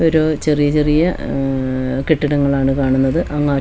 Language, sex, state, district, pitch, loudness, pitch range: Malayalam, female, Kerala, Wayanad, 145 Hz, -16 LUFS, 135-150 Hz